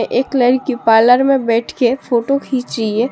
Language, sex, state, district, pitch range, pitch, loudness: Hindi, female, Assam, Sonitpur, 235-270 Hz, 250 Hz, -14 LUFS